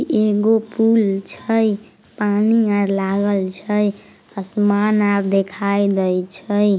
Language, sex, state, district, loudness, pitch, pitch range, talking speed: Magahi, female, Bihar, Samastipur, -18 LUFS, 205 Hz, 195-215 Hz, 105 wpm